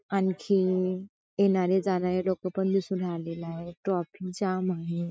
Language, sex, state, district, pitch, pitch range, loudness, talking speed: Marathi, female, Maharashtra, Chandrapur, 185 Hz, 180-190 Hz, -28 LUFS, 130 wpm